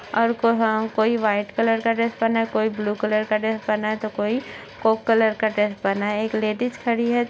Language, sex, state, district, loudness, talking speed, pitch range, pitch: Hindi, female, Bihar, Saharsa, -22 LUFS, 230 wpm, 215-230 Hz, 220 Hz